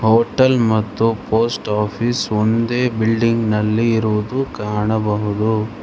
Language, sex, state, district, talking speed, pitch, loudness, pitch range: Kannada, male, Karnataka, Bangalore, 80 wpm, 110 Hz, -18 LUFS, 105-115 Hz